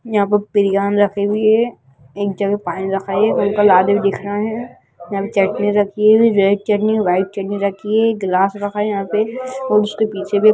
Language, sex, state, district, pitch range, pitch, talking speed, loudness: Hindi, male, Bihar, Gaya, 195-215 Hz, 205 Hz, 215 wpm, -16 LUFS